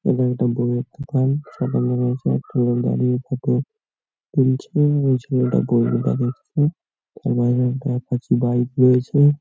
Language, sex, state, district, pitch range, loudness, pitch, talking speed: Bengali, male, West Bengal, North 24 Parganas, 125-140 Hz, -20 LUFS, 125 Hz, 125 wpm